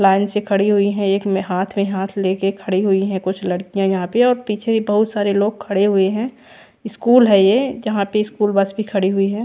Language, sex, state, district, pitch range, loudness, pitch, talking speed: Hindi, female, Odisha, Khordha, 195-210 Hz, -17 LUFS, 200 Hz, 235 wpm